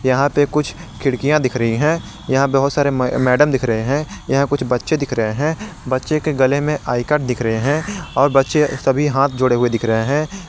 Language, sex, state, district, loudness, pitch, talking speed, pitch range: Hindi, male, Jharkhand, Garhwa, -17 LUFS, 140 Hz, 215 wpm, 125-150 Hz